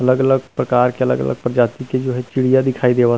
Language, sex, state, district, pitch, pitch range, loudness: Chhattisgarhi, male, Chhattisgarh, Rajnandgaon, 130 Hz, 125-130 Hz, -17 LUFS